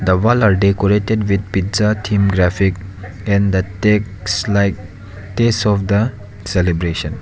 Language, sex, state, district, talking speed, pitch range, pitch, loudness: English, male, Arunachal Pradesh, Lower Dibang Valley, 135 wpm, 95-105 Hz, 100 Hz, -16 LUFS